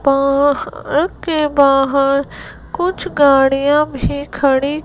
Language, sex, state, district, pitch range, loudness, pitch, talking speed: Hindi, female, Gujarat, Gandhinagar, 275-300 Hz, -15 LUFS, 285 Hz, 85 wpm